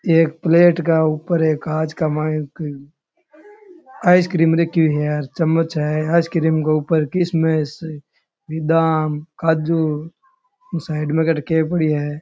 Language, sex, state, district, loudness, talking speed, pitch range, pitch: Rajasthani, male, Rajasthan, Churu, -18 LUFS, 140 wpm, 155-170 Hz, 160 Hz